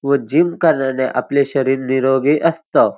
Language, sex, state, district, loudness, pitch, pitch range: Marathi, male, Maharashtra, Dhule, -16 LUFS, 140 Hz, 130-160 Hz